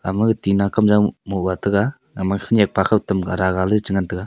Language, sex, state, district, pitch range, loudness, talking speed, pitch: Wancho, male, Arunachal Pradesh, Longding, 95-105 Hz, -19 LUFS, 210 wpm, 100 Hz